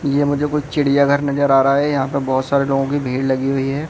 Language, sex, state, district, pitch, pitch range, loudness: Hindi, male, Delhi, New Delhi, 140 Hz, 135-145 Hz, -17 LUFS